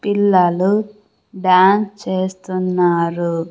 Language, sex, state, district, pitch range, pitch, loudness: Telugu, female, Andhra Pradesh, Sri Satya Sai, 180-205 Hz, 185 Hz, -16 LUFS